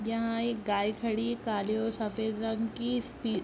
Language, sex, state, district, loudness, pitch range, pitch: Hindi, female, Bihar, Sitamarhi, -32 LUFS, 215-230 Hz, 225 Hz